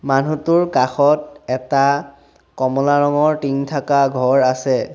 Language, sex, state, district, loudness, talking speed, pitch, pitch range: Assamese, male, Assam, Sonitpur, -17 LUFS, 110 wpm, 140 Hz, 130-145 Hz